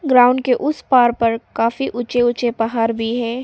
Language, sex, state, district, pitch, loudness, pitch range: Hindi, female, Arunachal Pradesh, Papum Pare, 240 Hz, -17 LUFS, 230-250 Hz